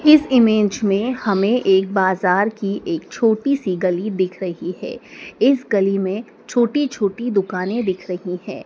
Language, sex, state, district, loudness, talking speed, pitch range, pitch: Hindi, female, Madhya Pradesh, Dhar, -19 LUFS, 150 wpm, 190-240 Hz, 200 Hz